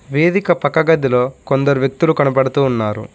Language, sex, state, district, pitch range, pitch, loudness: Telugu, male, Telangana, Mahabubabad, 130-160 Hz, 140 Hz, -15 LUFS